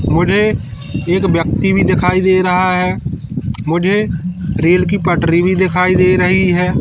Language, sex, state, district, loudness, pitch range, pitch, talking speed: Hindi, male, Madhya Pradesh, Katni, -14 LUFS, 175-185 Hz, 180 Hz, 150 wpm